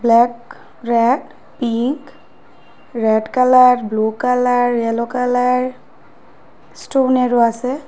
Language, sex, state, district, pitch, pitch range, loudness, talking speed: Bengali, female, Assam, Hailakandi, 245 Hz, 235-255 Hz, -16 LUFS, 90 wpm